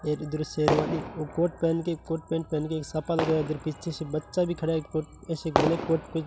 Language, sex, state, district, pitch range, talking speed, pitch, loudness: Hindi, male, Rajasthan, Bikaner, 155-165 Hz, 170 wpm, 160 Hz, -28 LUFS